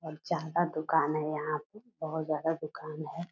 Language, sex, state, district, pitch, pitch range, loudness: Hindi, female, Bihar, Purnia, 160 Hz, 155-165 Hz, -33 LUFS